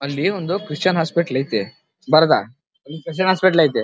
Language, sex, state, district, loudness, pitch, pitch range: Kannada, male, Karnataka, Dharwad, -18 LUFS, 165 Hz, 140-185 Hz